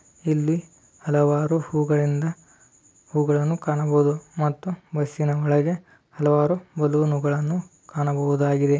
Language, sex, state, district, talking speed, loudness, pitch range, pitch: Kannada, male, Karnataka, Dharwad, 100 wpm, -23 LUFS, 145-160 Hz, 150 Hz